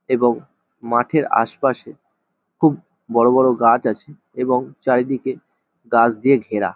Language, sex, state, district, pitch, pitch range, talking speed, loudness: Bengali, male, West Bengal, Jhargram, 125 Hz, 115-130 Hz, 115 wpm, -18 LUFS